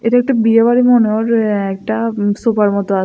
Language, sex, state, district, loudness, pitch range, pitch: Bengali, female, Tripura, West Tripura, -14 LUFS, 205-230 Hz, 225 Hz